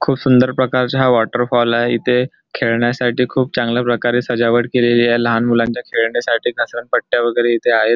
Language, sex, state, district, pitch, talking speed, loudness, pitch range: Marathi, male, Maharashtra, Nagpur, 120 Hz, 165 wpm, -16 LUFS, 120-125 Hz